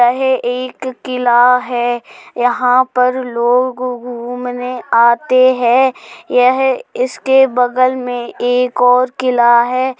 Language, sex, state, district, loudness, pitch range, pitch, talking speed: Hindi, female, Uttar Pradesh, Jalaun, -14 LUFS, 245-255 Hz, 250 Hz, 115 wpm